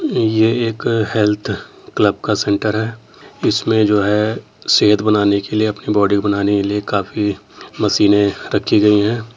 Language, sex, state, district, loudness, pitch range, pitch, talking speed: Hindi, male, Uttar Pradesh, Etah, -16 LUFS, 100-110 Hz, 105 Hz, 160 wpm